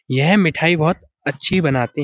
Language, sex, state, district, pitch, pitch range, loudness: Hindi, male, Uttar Pradesh, Budaun, 160 Hz, 140-185 Hz, -17 LUFS